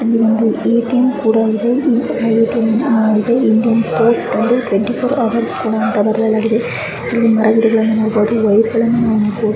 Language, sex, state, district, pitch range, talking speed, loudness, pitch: Kannada, female, Karnataka, Bijapur, 220-235 Hz, 140 wpm, -14 LUFS, 225 Hz